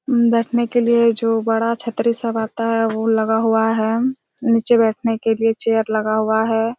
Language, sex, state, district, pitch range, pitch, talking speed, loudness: Hindi, female, Chhattisgarh, Raigarh, 225-235 Hz, 225 Hz, 185 wpm, -18 LUFS